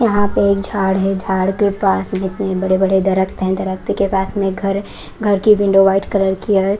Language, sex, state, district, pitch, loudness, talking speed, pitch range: Hindi, female, Haryana, Rohtak, 195 Hz, -16 LUFS, 220 wpm, 190-200 Hz